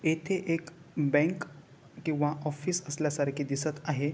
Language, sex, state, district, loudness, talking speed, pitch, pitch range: Marathi, male, Maharashtra, Chandrapur, -31 LUFS, 130 wpm, 150 Hz, 145-160 Hz